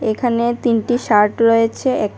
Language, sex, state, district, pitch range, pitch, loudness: Bengali, male, Tripura, West Tripura, 220-245 Hz, 230 Hz, -16 LUFS